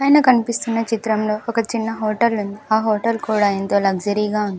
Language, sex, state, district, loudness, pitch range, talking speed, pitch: Telugu, female, Andhra Pradesh, Sri Satya Sai, -19 LUFS, 210-230 Hz, 170 wpm, 220 Hz